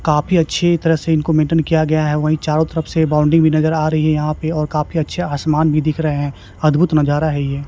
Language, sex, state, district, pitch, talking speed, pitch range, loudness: Hindi, male, Chhattisgarh, Raipur, 155 Hz, 260 wpm, 150-160 Hz, -16 LUFS